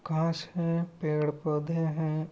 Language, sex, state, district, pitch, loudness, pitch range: Hindi, male, Jharkhand, Jamtara, 160 Hz, -30 LUFS, 155-165 Hz